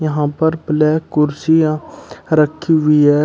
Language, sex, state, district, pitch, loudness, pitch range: Hindi, male, Uttar Pradesh, Shamli, 155 Hz, -15 LUFS, 150-160 Hz